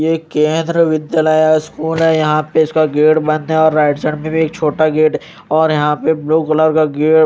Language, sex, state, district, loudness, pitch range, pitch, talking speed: Hindi, male, Chandigarh, Chandigarh, -14 LUFS, 155-160 Hz, 155 Hz, 230 wpm